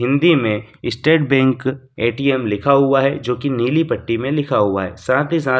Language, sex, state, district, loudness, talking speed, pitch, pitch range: Hindi, male, Delhi, New Delhi, -17 LUFS, 205 wpm, 130 Hz, 120-140 Hz